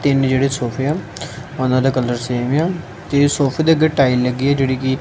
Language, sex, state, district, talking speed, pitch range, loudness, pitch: Punjabi, male, Punjab, Kapurthala, 215 wpm, 125-140 Hz, -17 LUFS, 135 Hz